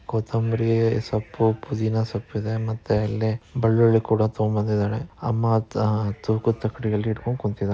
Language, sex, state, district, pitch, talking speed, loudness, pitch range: Kannada, male, Karnataka, Dharwad, 110 Hz, 115 wpm, -23 LUFS, 110-115 Hz